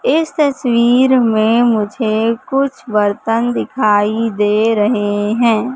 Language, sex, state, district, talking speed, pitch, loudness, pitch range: Hindi, female, Madhya Pradesh, Katni, 105 wpm, 225 Hz, -14 LUFS, 215-250 Hz